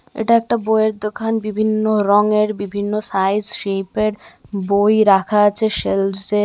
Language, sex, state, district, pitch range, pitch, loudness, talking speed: Bengali, female, Tripura, West Tripura, 200-215 Hz, 210 Hz, -17 LUFS, 140 wpm